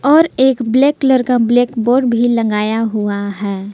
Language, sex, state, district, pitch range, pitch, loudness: Hindi, female, Jharkhand, Palamu, 215-260 Hz, 240 Hz, -14 LUFS